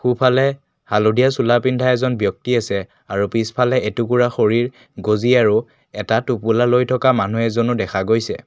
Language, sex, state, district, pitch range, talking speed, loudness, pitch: Assamese, male, Assam, Kamrup Metropolitan, 110-125 Hz, 150 wpm, -18 LUFS, 120 Hz